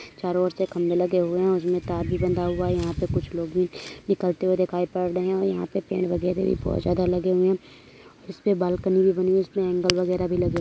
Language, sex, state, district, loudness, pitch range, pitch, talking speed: Hindi, female, Uttar Pradesh, Etah, -24 LUFS, 180-185 Hz, 180 Hz, 275 wpm